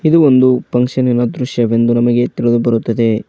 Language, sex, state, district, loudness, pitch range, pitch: Kannada, male, Karnataka, Koppal, -13 LUFS, 120-125 Hz, 120 Hz